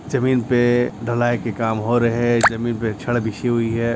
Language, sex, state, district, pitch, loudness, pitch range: Hindi, male, Chhattisgarh, Bastar, 120 Hz, -19 LUFS, 115-120 Hz